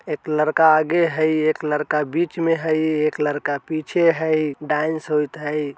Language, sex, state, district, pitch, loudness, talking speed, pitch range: Bajjika, male, Bihar, Vaishali, 155 Hz, -20 LUFS, 165 wpm, 150-160 Hz